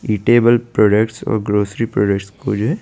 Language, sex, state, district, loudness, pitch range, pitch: Hindi, male, Chandigarh, Chandigarh, -16 LUFS, 105-120 Hz, 110 Hz